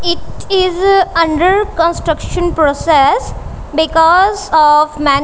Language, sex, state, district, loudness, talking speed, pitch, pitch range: English, female, Punjab, Kapurthala, -12 LUFS, 90 wpm, 335 Hz, 310-370 Hz